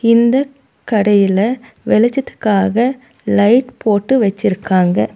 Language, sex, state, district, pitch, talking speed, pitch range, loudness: Tamil, female, Tamil Nadu, Nilgiris, 225 Hz, 70 wpm, 200-250 Hz, -14 LUFS